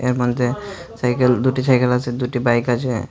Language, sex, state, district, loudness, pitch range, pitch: Bengali, male, Tripura, Unakoti, -19 LUFS, 120-130 Hz, 125 Hz